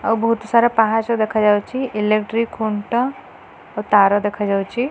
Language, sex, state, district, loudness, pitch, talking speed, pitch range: Odia, female, Odisha, Khordha, -18 LUFS, 220 Hz, 120 wpm, 210-230 Hz